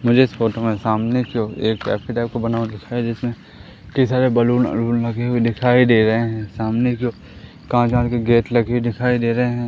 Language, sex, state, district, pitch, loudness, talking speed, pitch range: Hindi, male, Madhya Pradesh, Umaria, 120 Hz, -19 LUFS, 235 wpm, 115-120 Hz